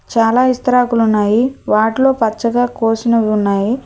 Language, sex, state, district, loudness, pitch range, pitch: Telugu, female, Telangana, Hyderabad, -14 LUFS, 220-250 Hz, 230 Hz